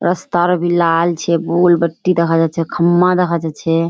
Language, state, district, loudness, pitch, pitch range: Surjapuri, Bihar, Kishanganj, -15 LUFS, 170 Hz, 165-175 Hz